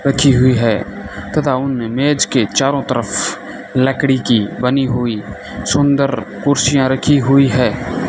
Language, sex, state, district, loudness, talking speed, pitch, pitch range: Hindi, male, Rajasthan, Bikaner, -15 LUFS, 135 wpm, 130 Hz, 115-140 Hz